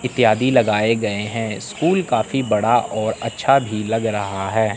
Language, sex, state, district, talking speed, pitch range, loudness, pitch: Hindi, male, Chandigarh, Chandigarh, 165 wpm, 105-125 Hz, -19 LUFS, 110 Hz